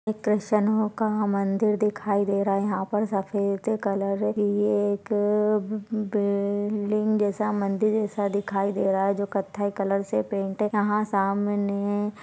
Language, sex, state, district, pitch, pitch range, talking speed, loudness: Hindi, female, Maharashtra, Chandrapur, 205 Hz, 200-210 Hz, 135 wpm, -25 LUFS